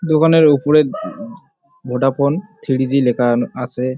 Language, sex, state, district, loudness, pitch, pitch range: Bengali, male, West Bengal, Jalpaiguri, -16 LUFS, 140 Hz, 130-160 Hz